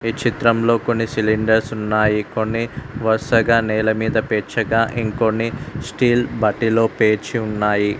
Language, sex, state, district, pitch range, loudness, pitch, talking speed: Telugu, male, Telangana, Mahabubabad, 110-115 Hz, -18 LUFS, 110 Hz, 110 wpm